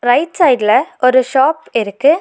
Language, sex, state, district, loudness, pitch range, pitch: Tamil, female, Tamil Nadu, Nilgiris, -13 LUFS, 245-295 Hz, 255 Hz